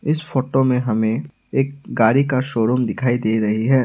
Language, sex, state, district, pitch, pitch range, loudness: Hindi, male, Assam, Sonitpur, 125 Hz, 110-135 Hz, -19 LUFS